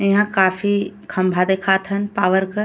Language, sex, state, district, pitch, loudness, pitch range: Bhojpuri, female, Uttar Pradesh, Gorakhpur, 195 Hz, -18 LUFS, 190-205 Hz